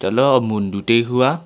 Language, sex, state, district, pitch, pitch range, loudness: Wancho, male, Arunachal Pradesh, Longding, 115 Hz, 105-130 Hz, -17 LUFS